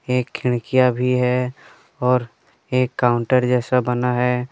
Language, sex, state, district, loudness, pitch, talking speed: Hindi, male, Jharkhand, Deoghar, -20 LUFS, 125 Hz, 135 wpm